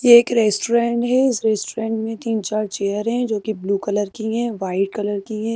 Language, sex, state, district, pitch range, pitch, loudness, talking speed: Hindi, female, Madhya Pradesh, Bhopal, 205-235 Hz, 220 Hz, -20 LUFS, 215 wpm